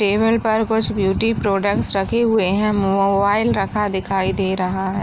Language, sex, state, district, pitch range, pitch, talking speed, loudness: Hindi, female, Maharashtra, Chandrapur, 195-220 Hz, 200 Hz, 165 wpm, -18 LUFS